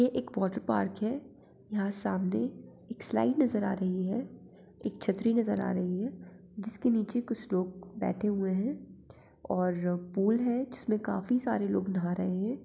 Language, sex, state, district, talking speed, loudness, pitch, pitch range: Hindi, female, Uttar Pradesh, Muzaffarnagar, 175 wpm, -32 LUFS, 205 Hz, 190-235 Hz